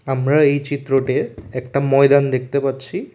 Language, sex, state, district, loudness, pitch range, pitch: Bengali, male, Tripura, West Tripura, -18 LUFS, 130-140 Hz, 135 Hz